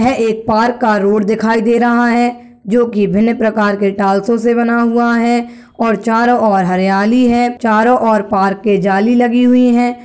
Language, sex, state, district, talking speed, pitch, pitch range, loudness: Hindi, male, Bihar, Kishanganj, 190 wpm, 230 Hz, 210-240 Hz, -12 LUFS